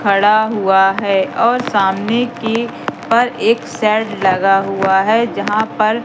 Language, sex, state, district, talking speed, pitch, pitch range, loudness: Hindi, female, Madhya Pradesh, Katni, 140 wpm, 215 Hz, 195-230 Hz, -15 LUFS